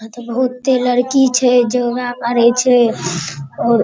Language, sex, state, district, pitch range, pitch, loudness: Maithili, female, Bihar, Araria, 235-250 Hz, 245 Hz, -15 LUFS